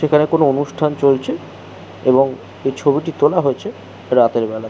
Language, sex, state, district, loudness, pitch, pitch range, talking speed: Bengali, male, West Bengal, Jhargram, -17 LUFS, 135 Hz, 115-150 Hz, 140 wpm